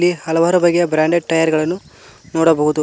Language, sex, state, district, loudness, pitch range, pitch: Kannada, male, Karnataka, Koppal, -16 LUFS, 160-175 Hz, 165 Hz